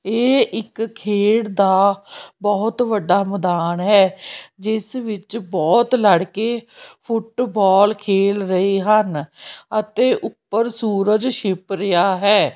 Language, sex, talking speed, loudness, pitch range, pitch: Punjabi, female, 105 wpm, -18 LUFS, 195-225 Hz, 210 Hz